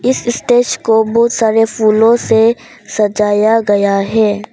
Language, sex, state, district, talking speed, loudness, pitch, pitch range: Hindi, female, Arunachal Pradesh, Papum Pare, 130 wpm, -12 LUFS, 225 Hz, 215-235 Hz